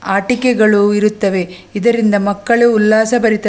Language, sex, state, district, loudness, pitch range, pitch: Kannada, female, Karnataka, Dakshina Kannada, -13 LUFS, 205-235 Hz, 215 Hz